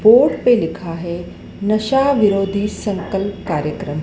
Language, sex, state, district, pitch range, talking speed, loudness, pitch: Hindi, female, Madhya Pradesh, Dhar, 170-215 Hz, 120 wpm, -18 LUFS, 200 Hz